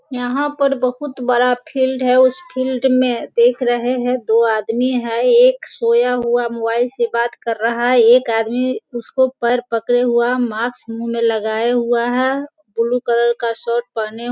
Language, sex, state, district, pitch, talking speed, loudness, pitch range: Hindi, female, Bihar, Sitamarhi, 245 Hz, 175 wpm, -17 LUFS, 235-255 Hz